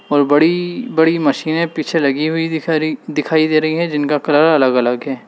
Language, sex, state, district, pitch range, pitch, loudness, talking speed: Hindi, male, Uttar Pradesh, Lalitpur, 145-160 Hz, 155 Hz, -15 LUFS, 195 wpm